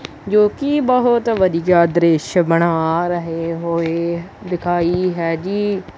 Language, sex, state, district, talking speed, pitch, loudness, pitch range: Punjabi, male, Punjab, Kapurthala, 110 wpm, 175 Hz, -17 LUFS, 165-195 Hz